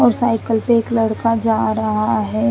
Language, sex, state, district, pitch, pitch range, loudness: Hindi, female, Chandigarh, Chandigarh, 225 Hz, 215-230 Hz, -17 LUFS